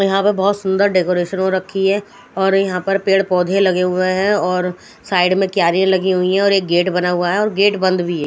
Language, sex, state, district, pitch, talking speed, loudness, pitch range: Hindi, female, Punjab, Fazilka, 190 Hz, 245 wpm, -16 LUFS, 180-195 Hz